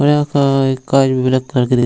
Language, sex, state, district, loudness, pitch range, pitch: Hindi, male, Bihar, Jamui, -15 LUFS, 130-140 Hz, 135 Hz